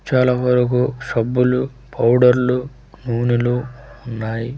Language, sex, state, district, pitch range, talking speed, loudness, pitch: Telugu, male, Andhra Pradesh, Manyam, 120-125 Hz, 90 wpm, -18 LUFS, 125 Hz